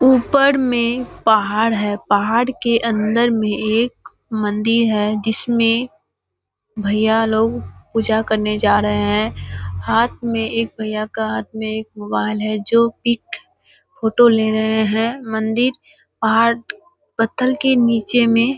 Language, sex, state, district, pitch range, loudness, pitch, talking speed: Hindi, female, Bihar, Kishanganj, 215-235 Hz, -18 LUFS, 220 Hz, 135 wpm